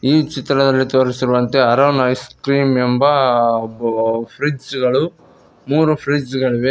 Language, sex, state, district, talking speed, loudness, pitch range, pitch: Kannada, male, Karnataka, Koppal, 115 wpm, -16 LUFS, 125-140 Hz, 130 Hz